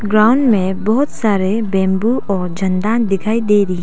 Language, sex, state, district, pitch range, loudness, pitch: Hindi, female, Arunachal Pradesh, Papum Pare, 190-225 Hz, -15 LUFS, 210 Hz